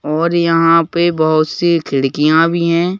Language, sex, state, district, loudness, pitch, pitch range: Hindi, male, Madhya Pradesh, Bhopal, -13 LUFS, 165 Hz, 155-170 Hz